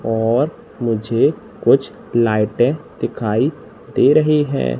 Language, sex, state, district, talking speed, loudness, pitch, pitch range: Hindi, male, Madhya Pradesh, Katni, 100 wpm, -17 LUFS, 120 Hz, 110-145 Hz